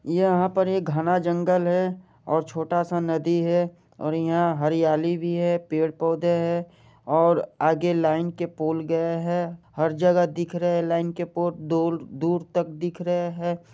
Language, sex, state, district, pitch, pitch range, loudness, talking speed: Hindi, male, Jharkhand, Jamtara, 170 Hz, 165-175 Hz, -24 LUFS, 180 wpm